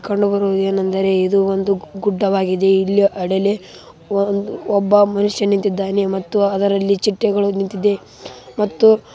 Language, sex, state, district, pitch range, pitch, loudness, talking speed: Kannada, female, Karnataka, Raichur, 195-205 Hz, 200 Hz, -17 LUFS, 100 wpm